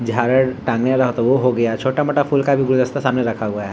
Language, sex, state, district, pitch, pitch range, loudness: Hindi, male, Bihar, Vaishali, 130 Hz, 115-130 Hz, -17 LUFS